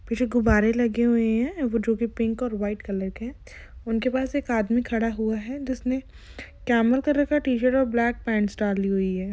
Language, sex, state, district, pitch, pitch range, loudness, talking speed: Hindi, female, Jharkhand, Sahebganj, 235 Hz, 220-255 Hz, -24 LUFS, 180 wpm